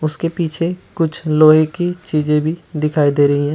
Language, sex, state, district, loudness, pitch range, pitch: Hindi, male, Uttar Pradesh, Shamli, -16 LUFS, 150-165 Hz, 155 Hz